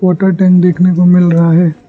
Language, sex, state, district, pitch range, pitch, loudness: Hindi, male, Arunachal Pradesh, Lower Dibang Valley, 175-180 Hz, 180 Hz, -9 LUFS